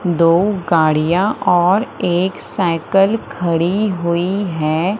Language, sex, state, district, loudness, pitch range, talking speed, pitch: Hindi, female, Madhya Pradesh, Umaria, -16 LUFS, 170-195 Hz, 95 wpm, 175 Hz